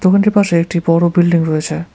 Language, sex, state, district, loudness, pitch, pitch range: Bengali, male, West Bengal, Cooch Behar, -13 LUFS, 170 Hz, 165-180 Hz